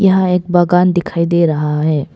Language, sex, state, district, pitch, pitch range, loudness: Hindi, female, Arunachal Pradesh, Papum Pare, 175 Hz, 155-180 Hz, -14 LUFS